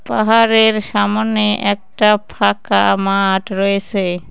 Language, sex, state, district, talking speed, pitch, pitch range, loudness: Bengali, female, West Bengal, Cooch Behar, 85 wpm, 200 Hz, 190-215 Hz, -15 LUFS